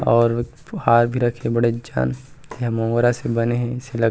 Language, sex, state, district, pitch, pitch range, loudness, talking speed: Chhattisgarhi, male, Chhattisgarh, Rajnandgaon, 120 Hz, 115-120 Hz, -21 LUFS, 220 wpm